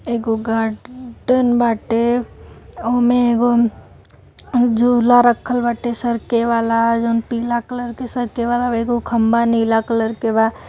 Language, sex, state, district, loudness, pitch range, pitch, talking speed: Bhojpuri, female, Uttar Pradesh, Deoria, -17 LUFS, 230-245 Hz, 235 Hz, 125 wpm